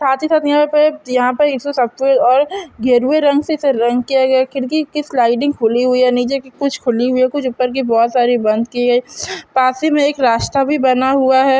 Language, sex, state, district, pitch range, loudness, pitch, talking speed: Hindi, female, Chhattisgarh, Bastar, 250-285 Hz, -15 LUFS, 265 Hz, 240 wpm